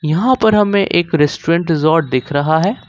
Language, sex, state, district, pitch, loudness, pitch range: Hindi, male, Jharkhand, Ranchi, 165 Hz, -14 LUFS, 155-200 Hz